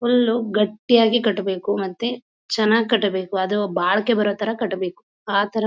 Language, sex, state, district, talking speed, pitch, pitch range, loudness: Kannada, female, Karnataka, Mysore, 140 wpm, 210 Hz, 200-230 Hz, -20 LUFS